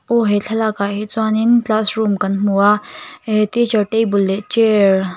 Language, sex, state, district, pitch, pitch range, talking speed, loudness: Mizo, female, Mizoram, Aizawl, 215 Hz, 200-220 Hz, 175 wpm, -16 LUFS